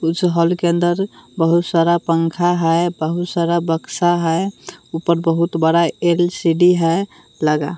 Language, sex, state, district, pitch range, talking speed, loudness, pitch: Hindi, female, Bihar, West Champaran, 165-175 Hz, 140 wpm, -17 LUFS, 170 Hz